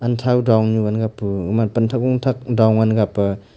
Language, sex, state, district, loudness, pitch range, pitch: Wancho, male, Arunachal Pradesh, Longding, -18 LUFS, 105-120 Hz, 110 Hz